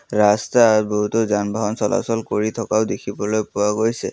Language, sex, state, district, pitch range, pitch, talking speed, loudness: Assamese, male, Assam, Kamrup Metropolitan, 105-115 Hz, 110 Hz, 145 wpm, -19 LUFS